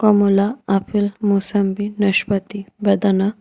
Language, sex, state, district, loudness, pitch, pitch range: Bengali, female, Tripura, West Tripura, -18 LUFS, 200 Hz, 195-205 Hz